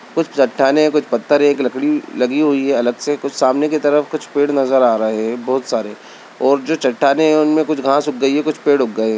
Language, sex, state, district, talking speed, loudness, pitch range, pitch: Hindi, female, Bihar, Bhagalpur, 255 wpm, -16 LUFS, 130-150 Hz, 140 Hz